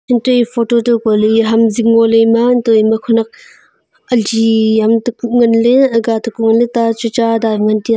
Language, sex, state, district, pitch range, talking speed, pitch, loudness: Wancho, female, Arunachal Pradesh, Longding, 225-235 Hz, 180 wpm, 230 Hz, -12 LUFS